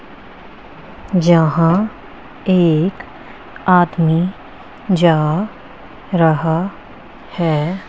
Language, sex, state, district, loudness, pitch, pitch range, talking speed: Hindi, female, Punjab, Pathankot, -16 LUFS, 175 Hz, 160-185 Hz, 45 wpm